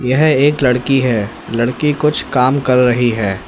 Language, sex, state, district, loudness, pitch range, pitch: Hindi, male, Uttar Pradesh, Lalitpur, -14 LUFS, 120-140 Hz, 125 Hz